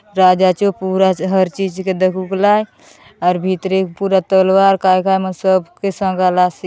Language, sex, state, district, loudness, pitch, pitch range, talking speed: Halbi, female, Chhattisgarh, Bastar, -15 LUFS, 190 Hz, 185-195 Hz, 170 wpm